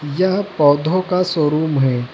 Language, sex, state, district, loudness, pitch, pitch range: Hindi, male, Uttar Pradesh, Lucknow, -17 LUFS, 155 Hz, 145-185 Hz